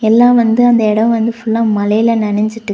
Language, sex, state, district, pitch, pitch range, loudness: Tamil, female, Tamil Nadu, Nilgiris, 225 Hz, 215-230 Hz, -12 LUFS